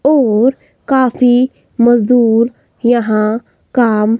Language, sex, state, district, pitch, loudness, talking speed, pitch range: Hindi, female, Himachal Pradesh, Shimla, 240 Hz, -13 LUFS, 70 wpm, 230-255 Hz